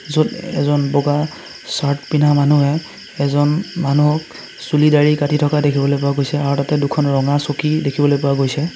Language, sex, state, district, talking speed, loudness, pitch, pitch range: Assamese, male, Assam, Sonitpur, 155 wpm, -17 LUFS, 145 Hz, 140-150 Hz